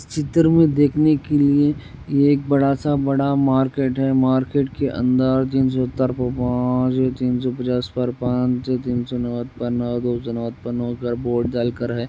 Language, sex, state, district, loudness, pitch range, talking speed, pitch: Hindi, male, Rajasthan, Nagaur, -20 LUFS, 120-140 Hz, 80 wpm, 130 Hz